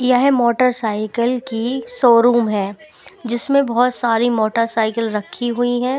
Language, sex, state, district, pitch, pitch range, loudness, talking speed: Hindi, female, Bihar, Patna, 235 Hz, 225-250 Hz, -17 LUFS, 140 wpm